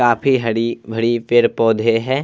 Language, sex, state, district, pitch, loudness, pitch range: Hindi, male, Bihar, Vaishali, 115 Hz, -17 LUFS, 115-120 Hz